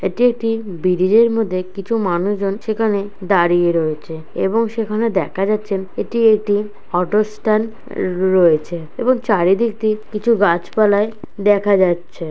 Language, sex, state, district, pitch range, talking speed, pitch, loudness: Bengali, female, West Bengal, Purulia, 185-220 Hz, 125 wpm, 205 Hz, -17 LUFS